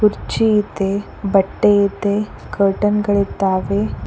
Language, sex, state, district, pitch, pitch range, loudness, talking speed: Kannada, female, Karnataka, Koppal, 200 Hz, 195-210 Hz, -17 LUFS, 90 wpm